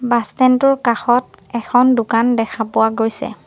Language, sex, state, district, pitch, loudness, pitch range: Assamese, female, Assam, Sonitpur, 235 Hz, -15 LUFS, 225-245 Hz